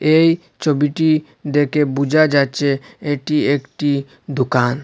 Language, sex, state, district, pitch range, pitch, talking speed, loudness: Bengali, male, Assam, Hailakandi, 140-155 Hz, 145 Hz, 100 wpm, -17 LUFS